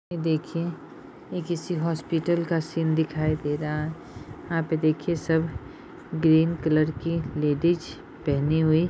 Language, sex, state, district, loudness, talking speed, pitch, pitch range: Hindi, female, Jharkhand, Jamtara, -26 LUFS, 140 wpm, 160 Hz, 155-165 Hz